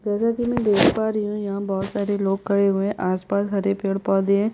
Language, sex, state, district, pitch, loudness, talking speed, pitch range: Hindi, female, Chhattisgarh, Jashpur, 200 Hz, -22 LUFS, 265 wpm, 195-210 Hz